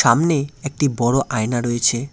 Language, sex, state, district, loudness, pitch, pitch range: Bengali, male, West Bengal, Cooch Behar, -19 LUFS, 125 Hz, 120-140 Hz